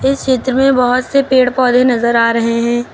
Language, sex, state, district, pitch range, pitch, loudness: Hindi, female, Uttar Pradesh, Lucknow, 240-260 Hz, 250 Hz, -12 LUFS